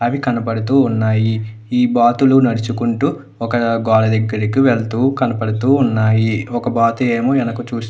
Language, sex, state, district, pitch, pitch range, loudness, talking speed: Telugu, male, Andhra Pradesh, Anantapur, 115 Hz, 110-125 Hz, -16 LUFS, 135 wpm